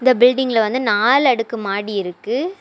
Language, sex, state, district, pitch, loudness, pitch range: Tamil, female, Tamil Nadu, Kanyakumari, 240 Hz, -17 LUFS, 210-260 Hz